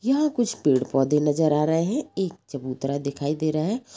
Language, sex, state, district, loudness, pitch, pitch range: Hindi, female, Bihar, Jamui, -24 LUFS, 155 Hz, 140-220 Hz